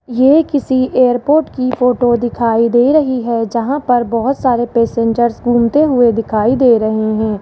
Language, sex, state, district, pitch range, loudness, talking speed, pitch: Hindi, male, Rajasthan, Jaipur, 230-260 Hz, -13 LUFS, 160 wpm, 245 Hz